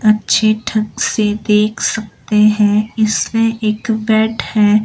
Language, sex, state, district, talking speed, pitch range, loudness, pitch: Hindi, female, Himachal Pradesh, Shimla, 125 wpm, 210-220 Hz, -15 LUFS, 215 Hz